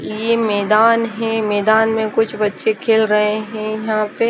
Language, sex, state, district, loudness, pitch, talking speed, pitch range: Hindi, female, Chandigarh, Chandigarh, -16 LUFS, 220 Hz, 165 wpm, 215-225 Hz